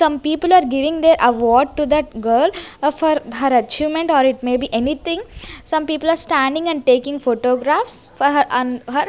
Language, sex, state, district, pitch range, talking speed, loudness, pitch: English, female, Punjab, Kapurthala, 255-315 Hz, 185 wpm, -17 LUFS, 290 Hz